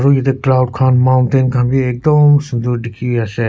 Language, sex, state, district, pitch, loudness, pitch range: Nagamese, male, Nagaland, Kohima, 130 Hz, -13 LUFS, 120-135 Hz